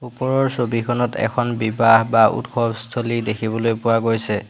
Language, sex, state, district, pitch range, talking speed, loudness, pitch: Assamese, male, Assam, Hailakandi, 115-120 Hz, 120 wpm, -19 LUFS, 115 Hz